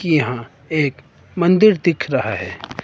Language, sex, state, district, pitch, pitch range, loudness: Hindi, male, Himachal Pradesh, Shimla, 145 Hz, 125-170 Hz, -18 LUFS